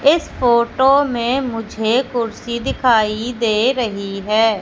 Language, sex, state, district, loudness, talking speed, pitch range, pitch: Hindi, female, Madhya Pradesh, Katni, -17 LUFS, 115 wpm, 220-255 Hz, 235 Hz